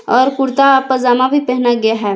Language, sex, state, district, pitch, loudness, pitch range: Hindi, female, Jharkhand, Ranchi, 255 Hz, -13 LUFS, 240-270 Hz